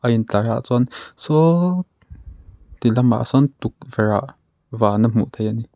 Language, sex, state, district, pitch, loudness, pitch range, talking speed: Mizo, male, Mizoram, Aizawl, 115 Hz, -19 LUFS, 105-130 Hz, 155 wpm